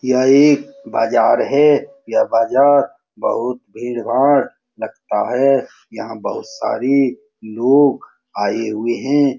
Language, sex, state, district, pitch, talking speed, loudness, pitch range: Hindi, male, Bihar, Saran, 135 Hz, 110 wpm, -16 LUFS, 120-140 Hz